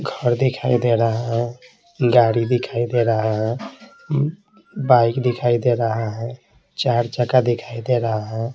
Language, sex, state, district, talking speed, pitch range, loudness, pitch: Hindi, male, Bihar, Patna, 145 wpm, 115-125 Hz, -20 LUFS, 120 Hz